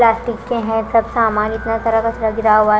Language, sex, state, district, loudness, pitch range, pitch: Hindi, female, Punjab, Kapurthala, -16 LUFS, 220-230 Hz, 225 Hz